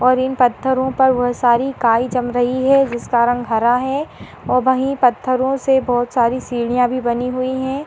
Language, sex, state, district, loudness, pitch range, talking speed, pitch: Hindi, female, Uttar Pradesh, Gorakhpur, -17 LUFS, 245-260 Hz, 190 wpm, 250 Hz